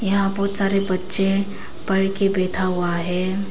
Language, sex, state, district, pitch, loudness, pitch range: Hindi, female, Arunachal Pradesh, Papum Pare, 195 Hz, -19 LUFS, 185-195 Hz